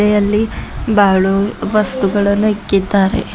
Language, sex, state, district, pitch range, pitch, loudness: Kannada, female, Karnataka, Bidar, 195-210 Hz, 205 Hz, -14 LUFS